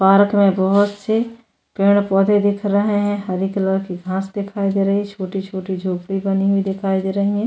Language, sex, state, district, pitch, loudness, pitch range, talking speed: Hindi, female, Goa, North and South Goa, 195 Hz, -18 LUFS, 190-205 Hz, 200 wpm